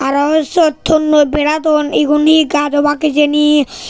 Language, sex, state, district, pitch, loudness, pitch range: Chakma, male, Tripura, Unakoti, 300 Hz, -12 LUFS, 295-310 Hz